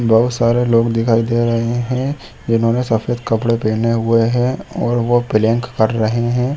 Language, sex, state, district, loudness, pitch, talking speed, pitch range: Hindi, male, Chhattisgarh, Bilaspur, -16 LUFS, 115 Hz, 185 wpm, 115-120 Hz